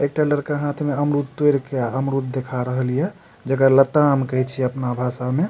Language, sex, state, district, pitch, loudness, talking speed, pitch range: Maithili, male, Bihar, Supaul, 135 Hz, -20 LUFS, 220 wpm, 130-145 Hz